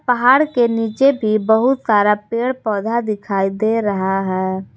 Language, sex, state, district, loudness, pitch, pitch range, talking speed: Hindi, female, Jharkhand, Garhwa, -17 LUFS, 220 Hz, 205-240 Hz, 150 wpm